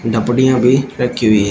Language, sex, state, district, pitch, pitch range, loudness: Hindi, male, Uttar Pradesh, Shamli, 125 Hz, 110-130 Hz, -14 LUFS